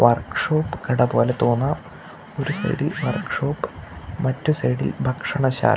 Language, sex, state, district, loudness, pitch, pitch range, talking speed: Malayalam, male, Kerala, Kasaragod, -22 LUFS, 125 Hz, 120-140 Hz, 125 wpm